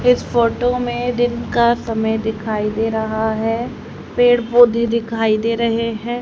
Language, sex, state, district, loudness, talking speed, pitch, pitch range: Hindi, female, Haryana, Rohtak, -17 LUFS, 155 wpm, 230 Hz, 220-240 Hz